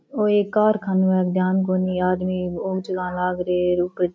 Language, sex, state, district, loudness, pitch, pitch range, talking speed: Rajasthani, female, Rajasthan, Churu, -21 LUFS, 185 Hz, 180-190 Hz, 200 wpm